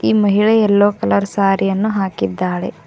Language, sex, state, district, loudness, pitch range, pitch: Kannada, female, Karnataka, Koppal, -15 LUFS, 190-205 Hz, 200 Hz